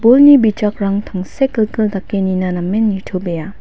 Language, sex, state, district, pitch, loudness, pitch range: Garo, female, Meghalaya, West Garo Hills, 200 Hz, -15 LUFS, 185-220 Hz